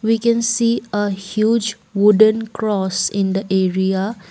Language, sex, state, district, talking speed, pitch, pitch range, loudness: English, female, Assam, Kamrup Metropolitan, 140 wpm, 210 Hz, 195-225 Hz, -17 LUFS